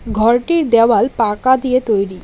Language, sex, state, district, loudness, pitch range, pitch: Bengali, female, West Bengal, Alipurduar, -14 LUFS, 220-255 Hz, 235 Hz